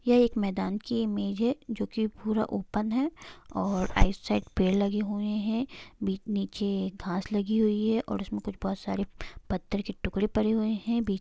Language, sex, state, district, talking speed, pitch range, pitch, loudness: Hindi, female, Bihar, Sitamarhi, 200 wpm, 195-220 Hz, 210 Hz, -30 LUFS